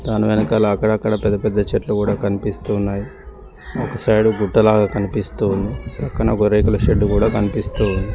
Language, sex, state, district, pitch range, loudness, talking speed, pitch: Telugu, male, Telangana, Mahabubabad, 100-110 Hz, -18 LUFS, 160 wpm, 105 Hz